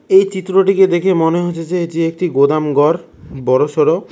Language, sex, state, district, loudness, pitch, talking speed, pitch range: Bengali, male, West Bengal, Cooch Behar, -14 LUFS, 170 Hz, 175 wpm, 155-190 Hz